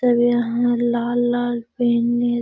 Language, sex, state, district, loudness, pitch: Magahi, female, Bihar, Gaya, -20 LUFS, 240 Hz